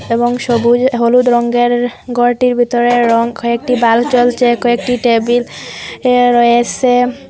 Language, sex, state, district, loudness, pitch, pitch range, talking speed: Bengali, female, Assam, Hailakandi, -12 LUFS, 240 Hz, 235-245 Hz, 115 wpm